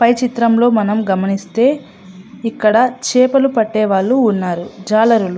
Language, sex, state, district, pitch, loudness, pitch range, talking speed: Telugu, female, Andhra Pradesh, Anantapur, 220 Hz, -14 LUFS, 195-240 Hz, 125 wpm